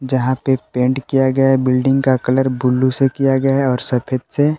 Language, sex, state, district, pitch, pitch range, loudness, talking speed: Hindi, male, Jharkhand, Palamu, 130 Hz, 130-135 Hz, -16 LUFS, 220 wpm